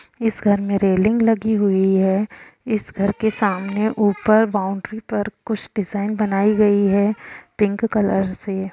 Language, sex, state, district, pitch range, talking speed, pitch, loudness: Hindi, female, Bihar, Saran, 200-220 Hz, 160 wpm, 205 Hz, -19 LUFS